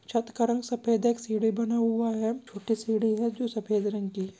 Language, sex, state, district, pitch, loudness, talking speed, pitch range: Hindi, male, Chhattisgarh, Korba, 225 Hz, -28 LUFS, 245 wpm, 220-230 Hz